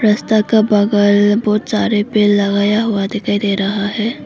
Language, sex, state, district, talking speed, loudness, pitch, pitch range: Hindi, female, Arunachal Pradesh, Lower Dibang Valley, 170 wpm, -14 LUFS, 210 Hz, 205-215 Hz